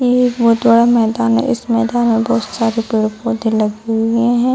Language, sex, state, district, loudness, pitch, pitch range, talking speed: Hindi, female, Bihar, Jamui, -15 LUFS, 230 Hz, 225-240 Hz, 200 wpm